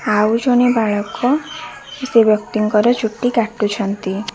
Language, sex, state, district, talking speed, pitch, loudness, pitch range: Odia, female, Odisha, Khordha, 95 wpm, 220 Hz, -16 LUFS, 210-245 Hz